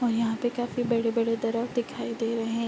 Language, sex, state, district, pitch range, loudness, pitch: Hindi, female, Uttar Pradesh, Ghazipur, 230-240 Hz, -28 LUFS, 230 Hz